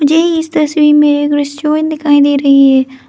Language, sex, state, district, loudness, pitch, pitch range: Hindi, female, Arunachal Pradesh, Lower Dibang Valley, -10 LUFS, 290 Hz, 285-305 Hz